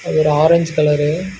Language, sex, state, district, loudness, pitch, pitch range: Tamil, male, Karnataka, Bangalore, -15 LUFS, 155 Hz, 150-170 Hz